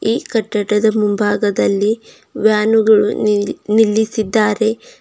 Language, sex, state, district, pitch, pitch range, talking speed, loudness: Kannada, female, Karnataka, Bidar, 215 Hz, 210-220 Hz, 70 wpm, -15 LUFS